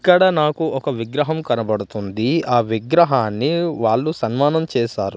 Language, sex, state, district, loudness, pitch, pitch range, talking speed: Telugu, male, Andhra Pradesh, Manyam, -19 LUFS, 140 Hz, 115-160 Hz, 115 wpm